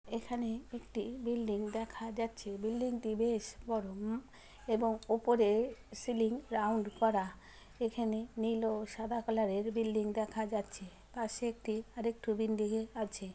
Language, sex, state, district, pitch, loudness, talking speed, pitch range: Bengali, female, West Bengal, Jalpaiguri, 225 Hz, -36 LUFS, 125 wpm, 215-230 Hz